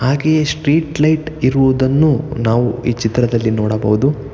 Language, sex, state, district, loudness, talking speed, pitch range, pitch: Kannada, male, Karnataka, Bangalore, -15 LUFS, 110 wpm, 120-150 Hz, 130 Hz